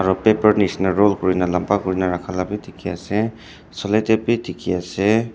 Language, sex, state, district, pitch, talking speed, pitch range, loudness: Nagamese, male, Nagaland, Dimapur, 95 Hz, 180 wpm, 90-110 Hz, -20 LUFS